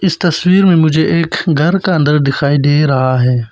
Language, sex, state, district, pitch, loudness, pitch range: Hindi, male, Arunachal Pradesh, Papum Pare, 155 Hz, -12 LUFS, 140-175 Hz